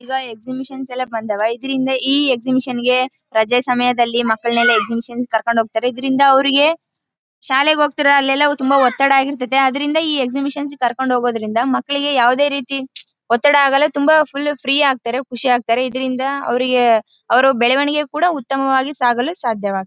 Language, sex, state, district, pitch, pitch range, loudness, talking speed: Kannada, female, Karnataka, Bellary, 260 Hz, 245-280 Hz, -16 LUFS, 145 wpm